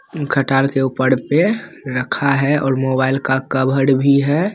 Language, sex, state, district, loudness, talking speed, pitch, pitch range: Hindi, male, Bihar, Begusarai, -17 LUFS, 185 wpm, 135 Hz, 130-140 Hz